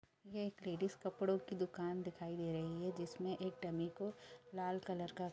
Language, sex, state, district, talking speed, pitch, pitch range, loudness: Hindi, female, Uttar Pradesh, Jyotiba Phule Nagar, 200 wpm, 185 Hz, 175-190 Hz, -44 LUFS